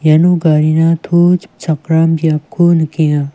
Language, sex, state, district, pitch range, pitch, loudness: Garo, female, Meghalaya, West Garo Hills, 155-170 Hz, 160 Hz, -12 LUFS